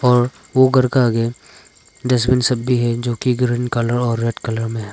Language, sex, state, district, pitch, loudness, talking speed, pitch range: Hindi, male, Arunachal Pradesh, Papum Pare, 120 Hz, -18 LUFS, 220 wpm, 115-125 Hz